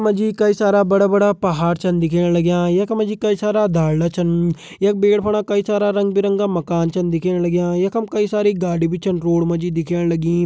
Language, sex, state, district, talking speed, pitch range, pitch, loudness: Hindi, male, Uttarakhand, Uttarkashi, 210 wpm, 170-205 Hz, 185 Hz, -18 LUFS